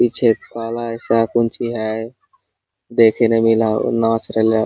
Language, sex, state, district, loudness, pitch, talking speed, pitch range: Hindi, male, Jharkhand, Sahebganj, -17 LUFS, 115 Hz, 140 wpm, 115-120 Hz